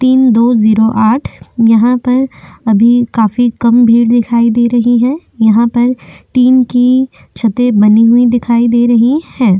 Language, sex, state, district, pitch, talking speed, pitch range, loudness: Hindi, female, Chhattisgarh, Korba, 235 Hz, 155 wpm, 230-245 Hz, -10 LUFS